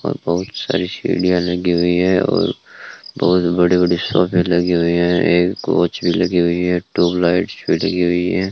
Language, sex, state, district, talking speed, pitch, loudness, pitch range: Hindi, male, Rajasthan, Bikaner, 185 wpm, 90 Hz, -17 LUFS, 85-90 Hz